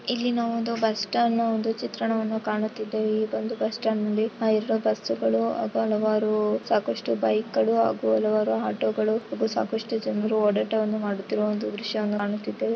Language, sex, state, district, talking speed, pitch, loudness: Kannada, female, Karnataka, Shimoga, 125 wpm, 215 Hz, -25 LUFS